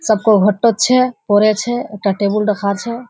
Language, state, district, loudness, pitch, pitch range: Surjapuri, Bihar, Kishanganj, -15 LUFS, 215 Hz, 205-240 Hz